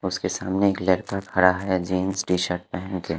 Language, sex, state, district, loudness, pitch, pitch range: Hindi, male, Haryana, Charkhi Dadri, -23 LUFS, 95 Hz, 90-95 Hz